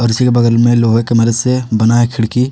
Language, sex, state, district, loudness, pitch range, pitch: Hindi, male, Jharkhand, Ranchi, -12 LUFS, 115-125 Hz, 120 Hz